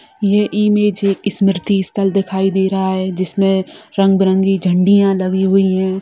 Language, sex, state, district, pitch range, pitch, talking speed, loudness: Hindi, female, Bihar, Sitamarhi, 190-200 Hz, 195 Hz, 140 wpm, -15 LUFS